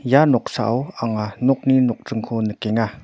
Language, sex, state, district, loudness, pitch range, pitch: Garo, male, Meghalaya, North Garo Hills, -20 LUFS, 110-135 Hz, 120 Hz